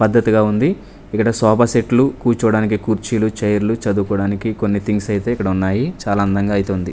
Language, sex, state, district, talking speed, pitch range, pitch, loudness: Telugu, male, Andhra Pradesh, Manyam, 155 wpm, 100-115 Hz, 110 Hz, -17 LUFS